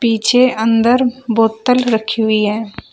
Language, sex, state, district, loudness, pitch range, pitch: Hindi, female, Uttar Pradesh, Shamli, -14 LUFS, 220-245 Hz, 225 Hz